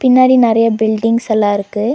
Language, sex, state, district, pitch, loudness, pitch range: Tamil, female, Tamil Nadu, Nilgiris, 225 Hz, -12 LUFS, 220-245 Hz